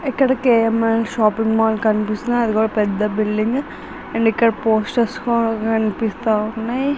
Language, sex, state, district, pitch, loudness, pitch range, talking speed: Telugu, female, Andhra Pradesh, Visakhapatnam, 225 Hz, -18 LUFS, 215-235 Hz, 120 wpm